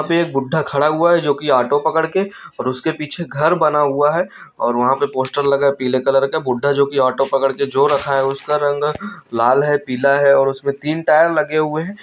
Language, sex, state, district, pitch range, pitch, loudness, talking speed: Hindi, male, Chhattisgarh, Bilaspur, 135-155 Hz, 145 Hz, -17 LUFS, 250 wpm